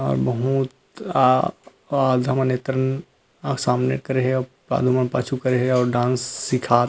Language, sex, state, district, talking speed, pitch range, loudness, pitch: Chhattisgarhi, male, Chhattisgarh, Rajnandgaon, 165 wpm, 125-130 Hz, -21 LUFS, 130 Hz